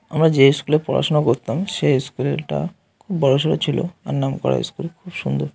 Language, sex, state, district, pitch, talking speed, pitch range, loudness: Bengali, male, West Bengal, North 24 Parganas, 150 Hz, 205 wpm, 135-170 Hz, -20 LUFS